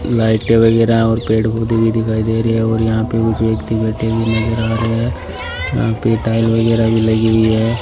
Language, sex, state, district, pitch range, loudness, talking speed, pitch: Hindi, male, Rajasthan, Bikaner, 110-115 Hz, -15 LUFS, 220 wpm, 115 Hz